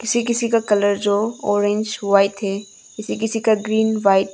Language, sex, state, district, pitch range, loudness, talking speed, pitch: Hindi, female, Arunachal Pradesh, Longding, 200-220 Hz, -19 LUFS, 195 wpm, 210 Hz